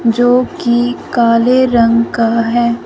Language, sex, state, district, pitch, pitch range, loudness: Hindi, female, Punjab, Fazilka, 235 Hz, 230-245 Hz, -12 LUFS